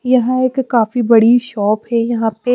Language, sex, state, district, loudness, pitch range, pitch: Hindi, female, Bihar, West Champaran, -14 LUFS, 225-250 Hz, 235 Hz